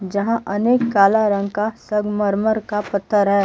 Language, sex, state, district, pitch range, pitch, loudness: Hindi, female, Jharkhand, Palamu, 200-220 Hz, 210 Hz, -19 LUFS